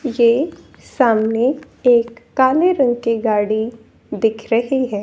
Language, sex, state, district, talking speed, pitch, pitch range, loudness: Hindi, female, Haryana, Jhajjar, 120 wpm, 235 Hz, 225-260 Hz, -17 LUFS